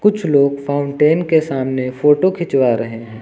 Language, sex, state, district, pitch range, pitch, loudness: Hindi, male, Uttar Pradesh, Lucknow, 130-160 Hz, 140 Hz, -16 LUFS